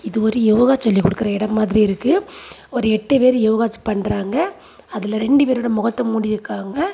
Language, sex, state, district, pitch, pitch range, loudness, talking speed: Tamil, female, Tamil Nadu, Kanyakumari, 225 Hz, 215-255 Hz, -18 LUFS, 175 wpm